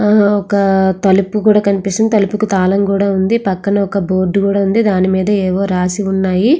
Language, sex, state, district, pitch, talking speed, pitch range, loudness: Telugu, female, Andhra Pradesh, Srikakulam, 200 Hz, 170 wpm, 190-205 Hz, -13 LUFS